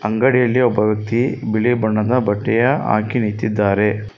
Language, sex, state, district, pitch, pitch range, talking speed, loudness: Kannada, male, Karnataka, Bangalore, 110 Hz, 105-120 Hz, 115 wpm, -17 LUFS